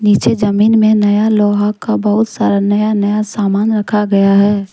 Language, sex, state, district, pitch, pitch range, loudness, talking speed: Hindi, female, Jharkhand, Deoghar, 210 Hz, 205-215 Hz, -12 LUFS, 180 wpm